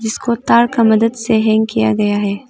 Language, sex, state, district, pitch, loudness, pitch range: Hindi, female, Arunachal Pradesh, Longding, 220 Hz, -14 LUFS, 210-235 Hz